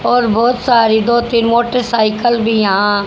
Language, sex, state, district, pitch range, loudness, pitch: Hindi, female, Haryana, Charkhi Dadri, 220-240 Hz, -13 LUFS, 230 Hz